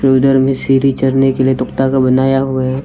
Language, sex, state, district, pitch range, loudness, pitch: Hindi, male, Arunachal Pradesh, Lower Dibang Valley, 130-135 Hz, -13 LUFS, 135 Hz